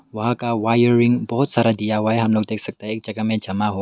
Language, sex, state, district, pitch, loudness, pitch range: Hindi, male, Meghalaya, West Garo Hills, 110 Hz, -20 LUFS, 110-120 Hz